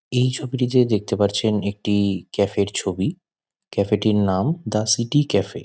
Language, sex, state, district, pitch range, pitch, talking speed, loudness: Bengali, male, West Bengal, Kolkata, 100-130 Hz, 105 Hz, 160 wpm, -21 LUFS